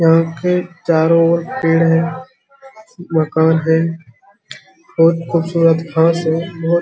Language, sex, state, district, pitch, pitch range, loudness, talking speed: Hindi, male, Jharkhand, Sahebganj, 165 Hz, 165-170 Hz, -15 LUFS, 105 wpm